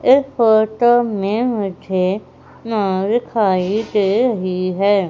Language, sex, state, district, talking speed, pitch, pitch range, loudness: Hindi, female, Madhya Pradesh, Umaria, 95 wpm, 210 Hz, 195-230 Hz, -17 LUFS